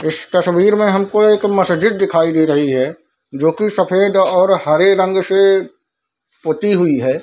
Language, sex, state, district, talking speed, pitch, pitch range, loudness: Hindi, male, Bihar, Darbhanga, 165 wpm, 185 Hz, 160-195 Hz, -14 LUFS